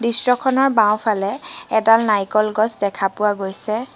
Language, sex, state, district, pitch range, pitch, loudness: Assamese, female, Assam, Sonitpur, 210-235 Hz, 215 Hz, -18 LUFS